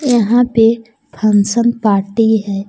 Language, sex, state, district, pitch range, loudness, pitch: Hindi, female, Jharkhand, Palamu, 205-235 Hz, -13 LUFS, 225 Hz